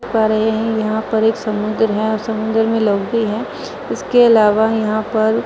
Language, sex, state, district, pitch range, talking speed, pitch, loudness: Hindi, female, Uttar Pradesh, Muzaffarnagar, 215-225 Hz, 220 wpm, 220 Hz, -16 LUFS